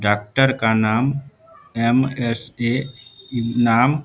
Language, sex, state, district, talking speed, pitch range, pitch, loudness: Hindi, male, Bihar, Samastipur, 90 wpm, 115-130 Hz, 120 Hz, -20 LUFS